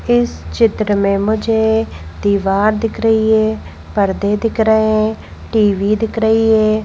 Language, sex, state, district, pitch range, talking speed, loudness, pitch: Hindi, female, Madhya Pradesh, Bhopal, 200-220 Hz, 140 wpm, -15 LUFS, 215 Hz